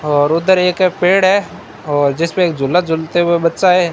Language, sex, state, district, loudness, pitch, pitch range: Hindi, male, Rajasthan, Bikaner, -14 LUFS, 175 Hz, 160-180 Hz